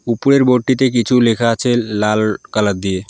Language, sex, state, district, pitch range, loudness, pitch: Bengali, male, West Bengal, Alipurduar, 105-125 Hz, -15 LUFS, 115 Hz